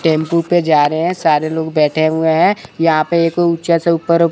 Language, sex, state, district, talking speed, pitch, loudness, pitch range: Hindi, male, Chandigarh, Chandigarh, 220 wpm, 165 Hz, -14 LUFS, 155-170 Hz